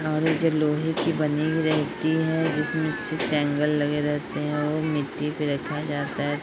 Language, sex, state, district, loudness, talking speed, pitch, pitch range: Hindi, female, Bihar, Sitamarhi, -25 LUFS, 195 wpm, 150 Hz, 150-160 Hz